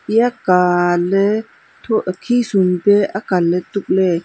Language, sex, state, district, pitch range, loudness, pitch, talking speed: Wancho, female, Arunachal Pradesh, Longding, 180-215 Hz, -16 LUFS, 195 Hz, 125 wpm